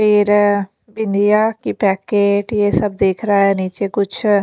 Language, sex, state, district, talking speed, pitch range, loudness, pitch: Hindi, female, Punjab, Pathankot, 150 wpm, 200-210 Hz, -16 LUFS, 205 Hz